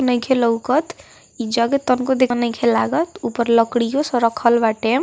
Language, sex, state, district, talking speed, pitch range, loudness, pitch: Hindi, female, Bihar, East Champaran, 165 wpm, 235-260 Hz, -18 LUFS, 240 Hz